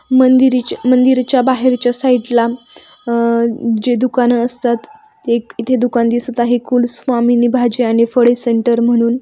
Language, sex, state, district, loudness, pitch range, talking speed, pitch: Marathi, female, Maharashtra, Sindhudurg, -14 LUFS, 235-255 Hz, 125 wpm, 245 Hz